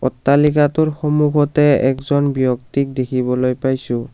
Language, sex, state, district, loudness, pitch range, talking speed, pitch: Assamese, male, Assam, Kamrup Metropolitan, -16 LUFS, 130-150 Hz, 85 wpm, 135 Hz